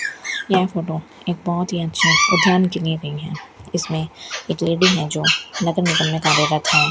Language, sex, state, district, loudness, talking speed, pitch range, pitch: Hindi, female, Rajasthan, Bikaner, -18 LUFS, 180 wpm, 160-180 Hz, 165 Hz